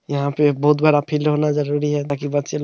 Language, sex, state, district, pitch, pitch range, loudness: Hindi, male, Bihar, Araria, 150 Hz, 145-150 Hz, -19 LUFS